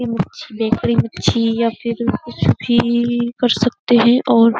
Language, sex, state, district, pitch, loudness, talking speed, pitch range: Hindi, female, Uttar Pradesh, Jyotiba Phule Nagar, 235 Hz, -17 LUFS, 115 wpm, 230-240 Hz